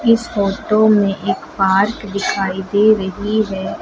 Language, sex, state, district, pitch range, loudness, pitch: Hindi, female, Uttar Pradesh, Lucknow, 195-215 Hz, -16 LUFS, 200 Hz